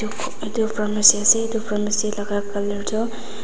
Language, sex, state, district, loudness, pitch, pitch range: Nagamese, female, Nagaland, Dimapur, -20 LUFS, 210 Hz, 205-220 Hz